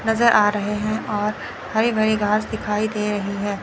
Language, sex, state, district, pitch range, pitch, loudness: Hindi, female, Chandigarh, Chandigarh, 205-220 Hz, 210 Hz, -21 LUFS